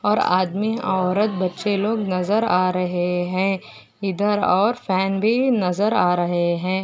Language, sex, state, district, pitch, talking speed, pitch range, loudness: Hindi, female, Goa, North and South Goa, 190 Hz, 150 wpm, 180-210 Hz, -21 LUFS